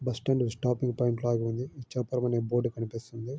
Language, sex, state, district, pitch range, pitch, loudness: Telugu, male, Andhra Pradesh, Srikakulam, 115-125 Hz, 120 Hz, -30 LUFS